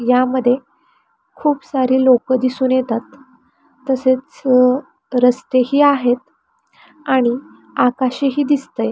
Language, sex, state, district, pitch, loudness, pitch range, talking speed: Marathi, female, Maharashtra, Pune, 260 Hz, -16 LUFS, 255-290 Hz, 80 wpm